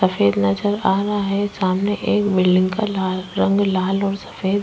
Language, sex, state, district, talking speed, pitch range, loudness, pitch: Hindi, female, Uttar Pradesh, Hamirpur, 195 wpm, 185-205 Hz, -19 LUFS, 195 Hz